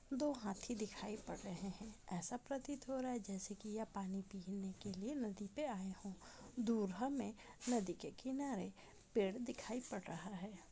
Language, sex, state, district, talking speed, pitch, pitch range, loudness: Hindi, female, Goa, North and South Goa, 180 wpm, 215 Hz, 195-250 Hz, -45 LUFS